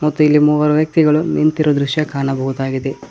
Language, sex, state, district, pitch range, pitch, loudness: Kannada, male, Karnataka, Koppal, 135-155 Hz, 150 Hz, -15 LUFS